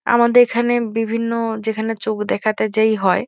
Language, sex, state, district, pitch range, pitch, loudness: Bengali, female, West Bengal, Kolkata, 220-230 Hz, 225 Hz, -18 LUFS